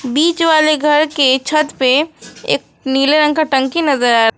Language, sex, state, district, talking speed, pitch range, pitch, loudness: Hindi, female, West Bengal, Alipurduar, 165 wpm, 265-310 Hz, 295 Hz, -13 LUFS